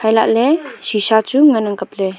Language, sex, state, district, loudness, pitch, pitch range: Wancho, female, Arunachal Pradesh, Longding, -14 LUFS, 220 Hz, 210-260 Hz